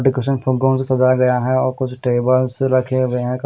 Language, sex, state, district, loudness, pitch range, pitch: Hindi, male, Haryana, Rohtak, -15 LUFS, 125-130 Hz, 130 Hz